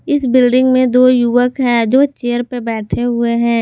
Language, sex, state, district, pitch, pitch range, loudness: Hindi, female, Jharkhand, Garhwa, 245 Hz, 235-255 Hz, -13 LUFS